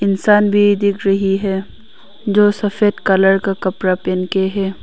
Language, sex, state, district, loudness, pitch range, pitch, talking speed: Hindi, female, Arunachal Pradesh, Papum Pare, -15 LUFS, 190-205 Hz, 195 Hz, 160 wpm